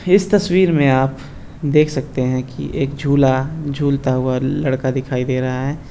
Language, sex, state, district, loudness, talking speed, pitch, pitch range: Hindi, male, Rajasthan, Nagaur, -18 LUFS, 175 wpm, 135 Hz, 130-150 Hz